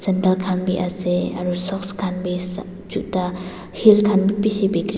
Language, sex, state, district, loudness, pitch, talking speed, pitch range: Nagamese, female, Nagaland, Dimapur, -20 LUFS, 185 Hz, 135 wpm, 180-200 Hz